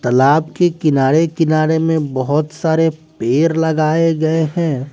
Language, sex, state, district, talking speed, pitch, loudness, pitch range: Hindi, male, Bihar, West Champaran, 135 wpm, 160 Hz, -15 LUFS, 150-160 Hz